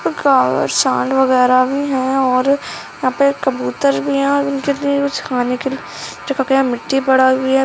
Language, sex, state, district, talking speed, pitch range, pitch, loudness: Hindi, female, Rajasthan, Nagaur, 180 wpm, 255-280 Hz, 265 Hz, -16 LUFS